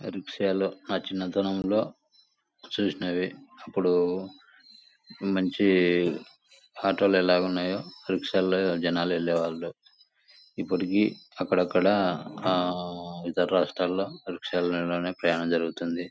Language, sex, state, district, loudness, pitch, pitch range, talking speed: Telugu, male, Andhra Pradesh, Anantapur, -27 LUFS, 90 Hz, 85-95 Hz, 105 wpm